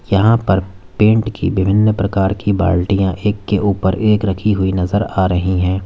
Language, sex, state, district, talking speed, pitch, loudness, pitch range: Hindi, male, Uttar Pradesh, Lalitpur, 185 wpm, 100 Hz, -15 LUFS, 95-105 Hz